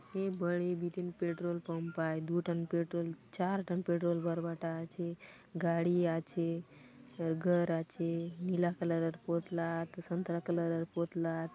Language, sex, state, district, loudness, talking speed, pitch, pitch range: Halbi, female, Chhattisgarh, Bastar, -36 LUFS, 135 wpm, 170 Hz, 165-175 Hz